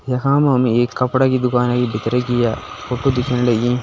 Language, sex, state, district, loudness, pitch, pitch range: Garhwali, male, Uttarakhand, Tehri Garhwal, -17 LUFS, 125 Hz, 120-130 Hz